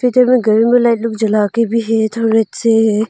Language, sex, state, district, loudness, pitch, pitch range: Hindi, female, Arunachal Pradesh, Longding, -13 LUFS, 225 Hz, 220-235 Hz